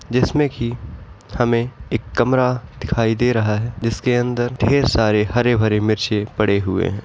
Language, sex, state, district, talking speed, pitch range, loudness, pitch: Hindi, male, Uttar Pradesh, Etah, 155 wpm, 105-120 Hz, -19 LUFS, 115 Hz